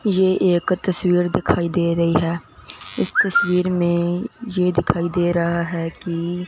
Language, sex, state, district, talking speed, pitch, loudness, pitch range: Hindi, male, Punjab, Fazilka, 150 wpm, 175 Hz, -20 LUFS, 170-180 Hz